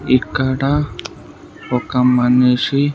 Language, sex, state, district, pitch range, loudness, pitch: Telugu, male, Andhra Pradesh, Sri Satya Sai, 125-140 Hz, -16 LUFS, 130 Hz